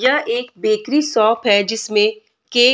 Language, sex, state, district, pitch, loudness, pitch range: Hindi, female, Bihar, Darbhanga, 225 Hz, -17 LUFS, 215-250 Hz